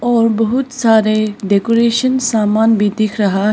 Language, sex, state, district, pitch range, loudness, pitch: Hindi, female, Arunachal Pradesh, Papum Pare, 210-235 Hz, -14 LUFS, 220 Hz